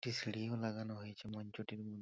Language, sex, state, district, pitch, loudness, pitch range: Bengali, male, West Bengal, Purulia, 110 Hz, -44 LUFS, 105-110 Hz